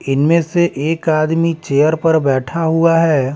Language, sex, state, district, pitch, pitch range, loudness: Hindi, male, Bihar, Patna, 160 Hz, 145-165 Hz, -15 LUFS